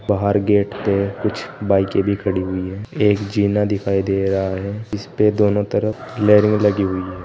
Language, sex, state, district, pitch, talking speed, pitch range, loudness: Hindi, male, Uttar Pradesh, Saharanpur, 100 Hz, 180 wpm, 95-105 Hz, -19 LUFS